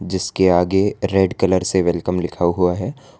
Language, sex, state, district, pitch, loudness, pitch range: Hindi, male, Gujarat, Valsad, 95 Hz, -18 LUFS, 90-95 Hz